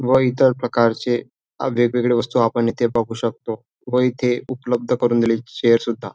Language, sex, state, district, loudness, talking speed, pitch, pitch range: Marathi, male, Maharashtra, Dhule, -19 LUFS, 155 wpm, 120 Hz, 115-125 Hz